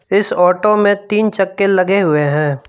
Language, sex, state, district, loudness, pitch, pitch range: Hindi, male, Jharkhand, Palamu, -14 LUFS, 195 Hz, 170-205 Hz